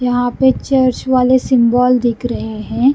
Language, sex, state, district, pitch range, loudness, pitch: Hindi, female, Punjab, Kapurthala, 240-260 Hz, -14 LUFS, 250 Hz